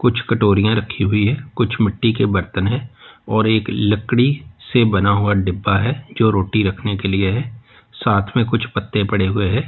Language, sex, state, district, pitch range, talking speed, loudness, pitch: Hindi, male, Uttar Pradesh, Lalitpur, 100-120 Hz, 185 wpm, -18 LUFS, 105 Hz